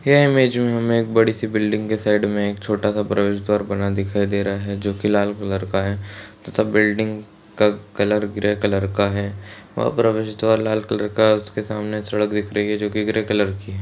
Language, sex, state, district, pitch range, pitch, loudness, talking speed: Hindi, male, Uttarakhand, Uttarkashi, 100-110 Hz, 105 Hz, -20 LUFS, 225 wpm